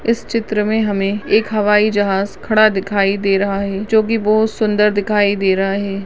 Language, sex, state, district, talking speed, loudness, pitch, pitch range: Hindi, female, Maharashtra, Chandrapur, 200 wpm, -16 LUFS, 210 Hz, 195-215 Hz